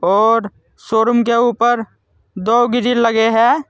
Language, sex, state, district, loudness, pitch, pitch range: Hindi, male, Uttar Pradesh, Saharanpur, -15 LUFS, 230 Hz, 225-240 Hz